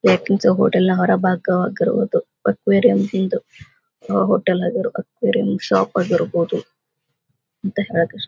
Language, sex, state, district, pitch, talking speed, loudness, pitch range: Kannada, female, Karnataka, Gulbarga, 185 Hz, 100 wpm, -19 LUFS, 170-205 Hz